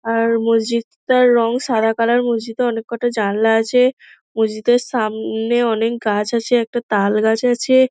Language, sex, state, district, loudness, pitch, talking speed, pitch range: Bengali, female, West Bengal, Dakshin Dinajpur, -17 LUFS, 230 Hz, 145 wpm, 225-240 Hz